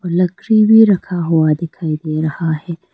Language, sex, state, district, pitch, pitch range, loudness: Hindi, female, Arunachal Pradesh, Lower Dibang Valley, 170 Hz, 155-185 Hz, -15 LUFS